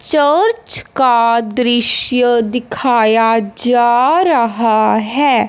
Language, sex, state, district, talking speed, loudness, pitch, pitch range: Hindi, male, Punjab, Fazilka, 75 wpm, -12 LUFS, 240 Hz, 225-265 Hz